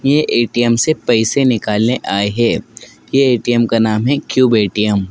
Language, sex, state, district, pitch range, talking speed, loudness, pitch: Hindi, male, Madhya Pradesh, Dhar, 110-130 Hz, 175 wpm, -14 LUFS, 120 Hz